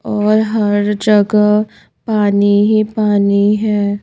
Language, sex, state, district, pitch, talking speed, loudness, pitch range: Hindi, female, Madhya Pradesh, Bhopal, 210 Hz, 105 wpm, -13 LUFS, 205-215 Hz